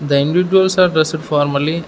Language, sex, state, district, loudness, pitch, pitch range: English, male, Arunachal Pradesh, Lower Dibang Valley, -15 LUFS, 155 Hz, 145-180 Hz